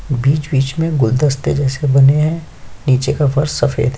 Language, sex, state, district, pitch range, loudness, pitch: Hindi, male, Chhattisgarh, Sukma, 135-150 Hz, -15 LUFS, 140 Hz